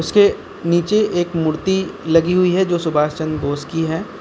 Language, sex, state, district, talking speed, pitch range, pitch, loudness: Hindi, male, Uttar Pradesh, Lucknow, 185 wpm, 160-190 Hz, 170 Hz, -18 LUFS